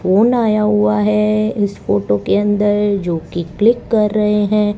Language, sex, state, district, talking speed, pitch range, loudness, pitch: Hindi, female, Rajasthan, Bikaner, 175 wpm, 200-210 Hz, -15 LUFS, 210 Hz